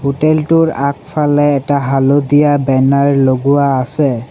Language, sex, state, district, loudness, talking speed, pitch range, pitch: Assamese, male, Assam, Sonitpur, -12 LUFS, 95 wpm, 135-145 Hz, 140 Hz